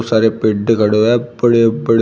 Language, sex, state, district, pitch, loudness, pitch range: Hindi, male, Uttar Pradesh, Shamli, 115 Hz, -14 LUFS, 110-115 Hz